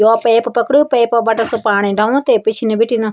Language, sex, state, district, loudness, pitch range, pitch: Garhwali, male, Uttarakhand, Tehri Garhwal, -14 LUFS, 220-235 Hz, 230 Hz